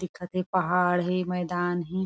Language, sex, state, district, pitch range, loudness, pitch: Chhattisgarhi, female, Chhattisgarh, Korba, 180-185 Hz, -27 LUFS, 180 Hz